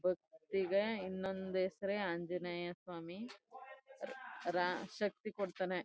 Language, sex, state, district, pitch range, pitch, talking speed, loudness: Kannada, female, Karnataka, Chamarajanagar, 180-205 Hz, 190 Hz, 70 wpm, -41 LUFS